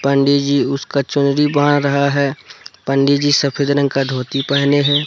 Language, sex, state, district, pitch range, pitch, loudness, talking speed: Hindi, male, Jharkhand, Deoghar, 140-145 Hz, 140 Hz, -16 LUFS, 180 wpm